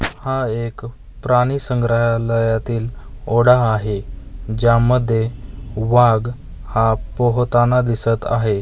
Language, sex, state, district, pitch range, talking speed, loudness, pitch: Marathi, male, Maharashtra, Mumbai Suburban, 110-120 Hz, 85 wpm, -17 LUFS, 115 Hz